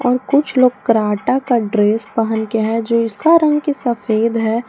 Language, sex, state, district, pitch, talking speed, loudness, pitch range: Hindi, female, Jharkhand, Palamu, 230 Hz, 190 wpm, -16 LUFS, 220-260 Hz